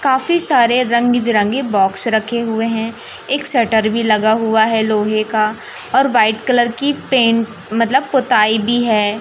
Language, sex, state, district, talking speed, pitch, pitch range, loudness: Hindi, male, Madhya Pradesh, Katni, 165 wpm, 230 Hz, 220-250 Hz, -14 LUFS